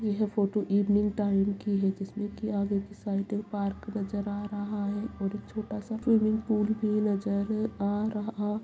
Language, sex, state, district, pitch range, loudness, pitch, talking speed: Hindi, female, Bihar, Purnia, 200-215 Hz, -30 LUFS, 205 Hz, 180 wpm